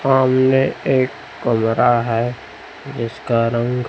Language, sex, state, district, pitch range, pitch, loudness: Hindi, male, Chhattisgarh, Raipur, 115-130 Hz, 120 Hz, -18 LUFS